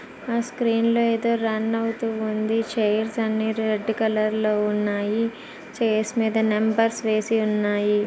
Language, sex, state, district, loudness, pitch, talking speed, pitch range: Telugu, female, Andhra Pradesh, Guntur, -23 LUFS, 220 Hz, 105 wpm, 215-225 Hz